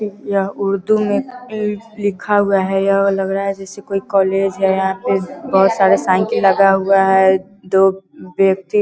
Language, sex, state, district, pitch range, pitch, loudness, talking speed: Hindi, female, Bihar, Vaishali, 195-205 Hz, 195 Hz, -16 LUFS, 170 wpm